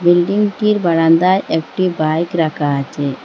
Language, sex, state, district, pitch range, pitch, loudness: Bengali, female, Assam, Hailakandi, 155-185 Hz, 165 Hz, -15 LUFS